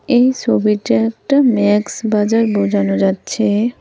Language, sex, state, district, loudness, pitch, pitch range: Bengali, male, West Bengal, Cooch Behar, -15 LUFS, 215 Hz, 205-235 Hz